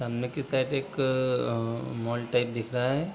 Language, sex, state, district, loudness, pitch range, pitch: Hindi, male, Bihar, Sitamarhi, -29 LUFS, 120-135 Hz, 125 Hz